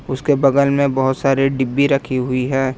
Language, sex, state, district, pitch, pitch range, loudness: Hindi, male, Jharkhand, Ranchi, 135 Hz, 130-140 Hz, -17 LUFS